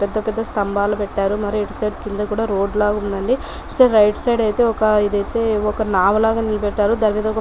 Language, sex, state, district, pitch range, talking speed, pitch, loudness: Telugu, female, Telangana, Nalgonda, 205-220 Hz, 180 wpm, 210 Hz, -18 LUFS